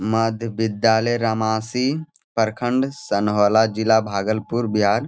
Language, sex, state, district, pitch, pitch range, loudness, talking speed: Hindi, male, Bihar, Jamui, 110 Hz, 110-120 Hz, -20 LUFS, 95 wpm